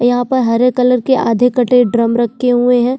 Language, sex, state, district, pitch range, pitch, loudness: Hindi, female, Chhattisgarh, Sukma, 240-250 Hz, 245 Hz, -13 LUFS